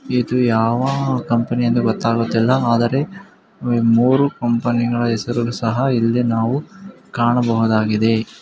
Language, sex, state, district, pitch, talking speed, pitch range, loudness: Kannada, male, Karnataka, Mysore, 120 Hz, 100 wpm, 115-125 Hz, -17 LUFS